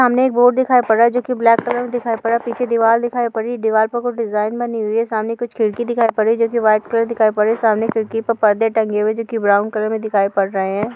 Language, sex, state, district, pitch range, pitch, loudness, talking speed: Hindi, female, Bihar, Darbhanga, 220-235 Hz, 230 Hz, -17 LUFS, 310 wpm